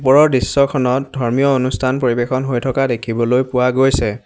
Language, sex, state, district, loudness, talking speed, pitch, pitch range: Assamese, male, Assam, Hailakandi, -16 LUFS, 140 wpm, 130 Hz, 120-135 Hz